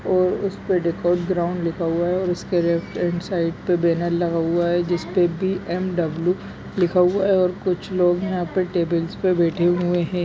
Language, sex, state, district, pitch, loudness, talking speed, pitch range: Hindi, female, Chhattisgarh, Raigarh, 175 Hz, -21 LUFS, 200 wpm, 170-185 Hz